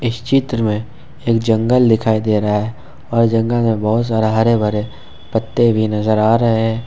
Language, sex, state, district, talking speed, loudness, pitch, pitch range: Hindi, male, Jharkhand, Ranchi, 190 wpm, -16 LUFS, 115 Hz, 110-115 Hz